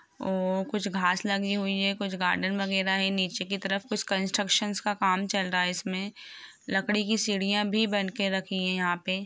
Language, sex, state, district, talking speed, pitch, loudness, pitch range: Hindi, female, Bihar, Lakhisarai, 200 wpm, 195 Hz, -28 LUFS, 190-205 Hz